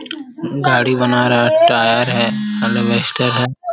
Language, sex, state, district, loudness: Hindi, male, Bihar, Jamui, -14 LUFS